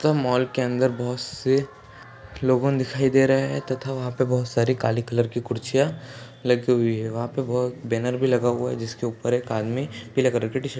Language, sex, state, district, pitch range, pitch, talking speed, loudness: Hindi, male, Uttar Pradesh, Ghazipur, 120-135 Hz, 125 Hz, 220 wpm, -24 LUFS